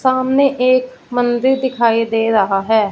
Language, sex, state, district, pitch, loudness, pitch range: Hindi, female, Punjab, Fazilka, 245 Hz, -15 LUFS, 225-260 Hz